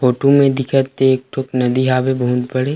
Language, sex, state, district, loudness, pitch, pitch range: Chhattisgarhi, male, Chhattisgarh, Rajnandgaon, -16 LUFS, 130 Hz, 130-135 Hz